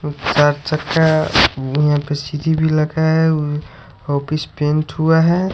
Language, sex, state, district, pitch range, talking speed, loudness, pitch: Hindi, male, Odisha, Sambalpur, 145-160 Hz, 65 wpm, -17 LUFS, 150 Hz